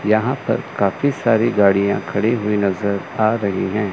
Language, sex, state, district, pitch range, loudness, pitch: Hindi, male, Chandigarh, Chandigarh, 100-115 Hz, -18 LUFS, 105 Hz